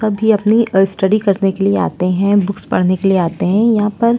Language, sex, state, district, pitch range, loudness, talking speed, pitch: Hindi, female, Uttar Pradesh, Jyotiba Phule Nagar, 190-215 Hz, -14 LUFS, 230 wpm, 200 Hz